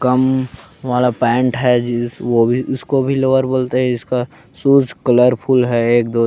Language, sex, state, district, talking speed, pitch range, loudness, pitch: Chhattisgarhi, male, Chhattisgarh, Kabirdham, 180 wpm, 120-130 Hz, -16 LUFS, 125 Hz